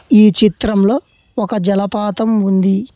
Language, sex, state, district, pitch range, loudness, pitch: Telugu, male, Telangana, Hyderabad, 200-220 Hz, -14 LUFS, 210 Hz